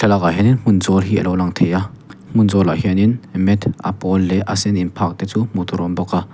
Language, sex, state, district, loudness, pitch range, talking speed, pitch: Mizo, male, Mizoram, Aizawl, -17 LUFS, 90-105 Hz, 275 wpm, 95 Hz